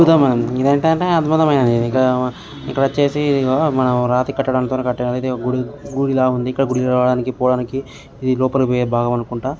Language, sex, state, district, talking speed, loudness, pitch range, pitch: Telugu, male, Andhra Pradesh, Srikakulam, 130 wpm, -17 LUFS, 125-135 Hz, 130 Hz